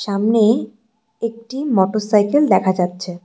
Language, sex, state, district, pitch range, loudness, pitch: Bengali, female, West Bengal, Cooch Behar, 190-230 Hz, -17 LUFS, 215 Hz